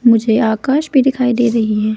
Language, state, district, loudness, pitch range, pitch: Hindi, Arunachal Pradesh, Lower Dibang Valley, -14 LUFS, 220-260 Hz, 235 Hz